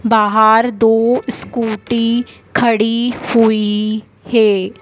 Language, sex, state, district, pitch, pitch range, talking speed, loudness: Hindi, female, Madhya Pradesh, Dhar, 225 Hz, 215-235 Hz, 75 wpm, -14 LUFS